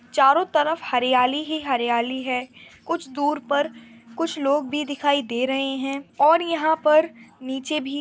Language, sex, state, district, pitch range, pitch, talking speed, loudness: Hindi, female, Bihar, Madhepura, 255-305 Hz, 280 Hz, 165 wpm, -22 LUFS